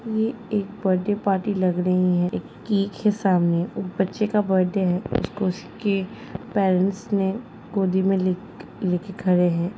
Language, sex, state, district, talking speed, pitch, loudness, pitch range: Hindi, female, Bihar, Jamui, 160 wpm, 195 Hz, -23 LUFS, 185-205 Hz